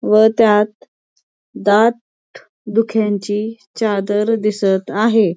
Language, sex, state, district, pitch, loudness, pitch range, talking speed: Marathi, female, Maharashtra, Pune, 215 Hz, -16 LUFS, 205-225 Hz, 80 wpm